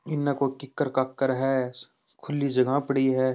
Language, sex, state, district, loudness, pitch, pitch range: Marwari, male, Rajasthan, Churu, -26 LUFS, 135 Hz, 130-140 Hz